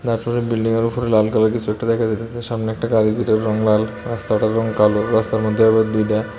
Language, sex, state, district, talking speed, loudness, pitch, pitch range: Bengali, male, Tripura, West Tripura, 205 wpm, -18 LUFS, 110 Hz, 110-115 Hz